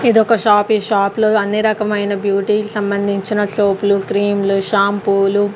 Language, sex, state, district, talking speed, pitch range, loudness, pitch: Telugu, female, Andhra Pradesh, Sri Satya Sai, 170 wpm, 200-215 Hz, -15 LUFS, 205 Hz